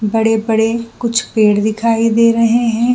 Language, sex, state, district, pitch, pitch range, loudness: Hindi, female, Jharkhand, Jamtara, 230 Hz, 220-230 Hz, -14 LUFS